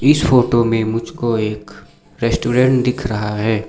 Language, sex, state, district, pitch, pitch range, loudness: Hindi, male, Sikkim, Gangtok, 115 Hz, 105-125 Hz, -17 LUFS